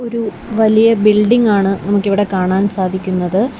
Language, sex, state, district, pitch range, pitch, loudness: Malayalam, female, Kerala, Kollam, 195-225 Hz, 205 Hz, -14 LUFS